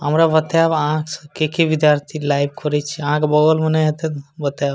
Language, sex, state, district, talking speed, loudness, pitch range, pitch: Maithili, male, Bihar, Madhepura, 240 wpm, -18 LUFS, 145-155 Hz, 150 Hz